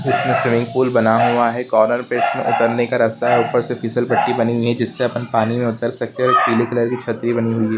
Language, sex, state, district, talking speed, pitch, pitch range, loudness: Hindi, male, Chhattisgarh, Rajnandgaon, 260 wpm, 120 Hz, 115-120 Hz, -17 LUFS